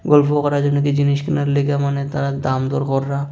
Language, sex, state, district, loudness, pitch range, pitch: Bengali, male, Tripura, West Tripura, -18 LUFS, 140-145 Hz, 140 Hz